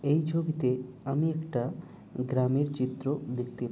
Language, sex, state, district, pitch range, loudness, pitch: Bengali, male, West Bengal, Dakshin Dinajpur, 125-150 Hz, -31 LUFS, 130 Hz